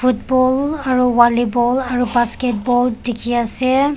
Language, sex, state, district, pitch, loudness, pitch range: Nagamese, female, Nagaland, Kohima, 245 Hz, -16 LUFS, 240-255 Hz